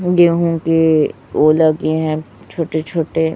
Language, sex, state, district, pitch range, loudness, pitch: Hindi, female, Chhattisgarh, Raipur, 155-165 Hz, -15 LUFS, 160 Hz